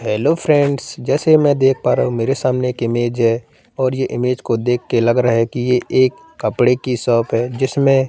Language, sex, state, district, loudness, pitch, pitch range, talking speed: Hindi, male, Madhya Pradesh, Katni, -17 LUFS, 125 Hz, 120-135 Hz, 215 wpm